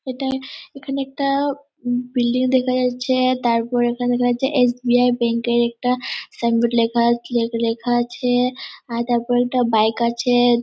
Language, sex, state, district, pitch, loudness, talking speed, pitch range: Bengali, male, West Bengal, Dakshin Dinajpur, 245 Hz, -20 LUFS, 145 wpm, 235-255 Hz